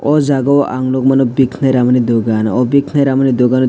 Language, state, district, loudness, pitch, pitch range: Kokborok, Tripura, West Tripura, -13 LUFS, 130 Hz, 125-140 Hz